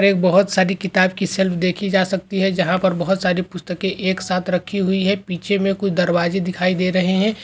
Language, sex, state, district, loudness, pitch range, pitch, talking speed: Hindi, male, Bihar, Begusarai, -19 LUFS, 185-195 Hz, 190 Hz, 235 wpm